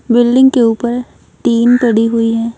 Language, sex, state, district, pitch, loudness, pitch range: Hindi, female, Haryana, Jhajjar, 235 Hz, -12 LUFS, 230-245 Hz